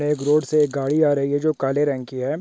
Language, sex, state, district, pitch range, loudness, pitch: Hindi, male, West Bengal, Dakshin Dinajpur, 140-150 Hz, -21 LUFS, 145 Hz